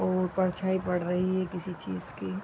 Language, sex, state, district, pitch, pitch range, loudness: Hindi, female, Bihar, East Champaran, 180 Hz, 175-185 Hz, -30 LUFS